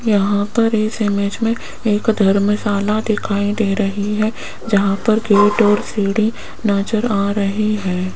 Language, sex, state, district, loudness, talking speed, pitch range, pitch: Hindi, female, Rajasthan, Jaipur, -17 LUFS, 145 wpm, 200-215 Hz, 210 Hz